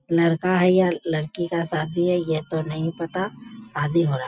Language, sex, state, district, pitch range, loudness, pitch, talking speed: Hindi, female, Bihar, Bhagalpur, 160-180 Hz, -23 LUFS, 170 Hz, 210 wpm